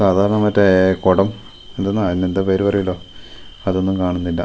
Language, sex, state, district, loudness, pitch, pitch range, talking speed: Malayalam, male, Kerala, Wayanad, -17 LUFS, 95 Hz, 95-100 Hz, 135 wpm